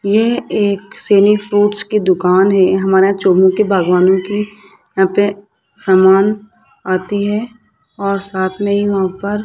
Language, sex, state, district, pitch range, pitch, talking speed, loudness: Hindi, male, Rajasthan, Jaipur, 190-210 Hz, 200 Hz, 150 wpm, -13 LUFS